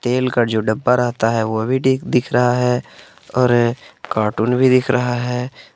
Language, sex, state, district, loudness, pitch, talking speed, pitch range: Hindi, male, Jharkhand, Palamu, -17 LUFS, 125 Hz, 190 wpm, 115-125 Hz